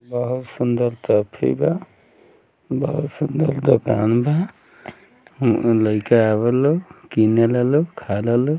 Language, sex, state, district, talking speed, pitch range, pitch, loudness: Bhojpuri, male, Bihar, Muzaffarpur, 105 wpm, 115-145 Hz, 120 Hz, -19 LUFS